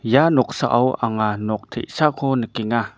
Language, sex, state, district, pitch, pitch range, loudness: Garo, male, Meghalaya, North Garo Hills, 115 Hz, 110-130 Hz, -20 LUFS